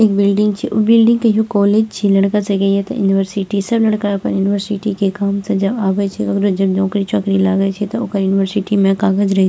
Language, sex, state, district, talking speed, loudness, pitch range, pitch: Maithili, female, Bihar, Purnia, 240 wpm, -15 LUFS, 195-210 Hz, 200 Hz